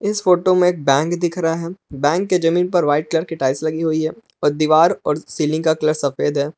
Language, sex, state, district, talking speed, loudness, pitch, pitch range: Hindi, male, Jharkhand, Palamu, 235 wpm, -18 LUFS, 160 Hz, 150-175 Hz